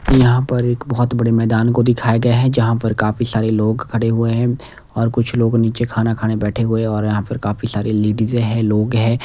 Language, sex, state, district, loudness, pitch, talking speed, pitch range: Hindi, male, Himachal Pradesh, Shimla, -17 LUFS, 115 Hz, 225 wpm, 110-120 Hz